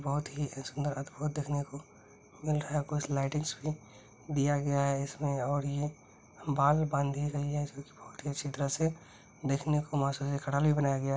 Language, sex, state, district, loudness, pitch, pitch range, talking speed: Hindi, male, Bihar, Araria, -33 LUFS, 140 Hz, 140-150 Hz, 160 wpm